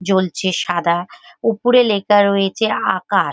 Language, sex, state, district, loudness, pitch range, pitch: Bengali, female, West Bengal, Paschim Medinipur, -16 LUFS, 185-210 Hz, 195 Hz